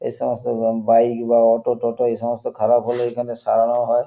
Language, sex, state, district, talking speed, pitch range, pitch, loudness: Bengali, male, West Bengal, North 24 Parganas, 175 wpm, 115-120 Hz, 120 Hz, -19 LUFS